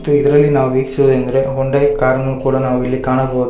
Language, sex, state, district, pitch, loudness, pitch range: Kannada, male, Karnataka, Bangalore, 135 Hz, -14 LUFS, 130-140 Hz